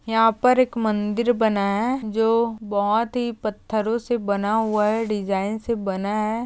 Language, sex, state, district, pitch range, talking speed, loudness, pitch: Hindi, female, Maharashtra, Chandrapur, 210-230 Hz, 165 wpm, -22 LUFS, 220 Hz